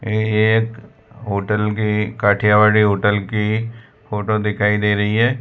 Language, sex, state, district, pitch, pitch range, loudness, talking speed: Hindi, male, Gujarat, Valsad, 105 Hz, 105-110 Hz, -17 LUFS, 135 wpm